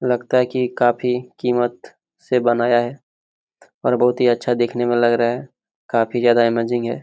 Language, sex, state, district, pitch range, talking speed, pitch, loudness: Hindi, male, Jharkhand, Jamtara, 120-125 Hz, 180 wpm, 120 Hz, -19 LUFS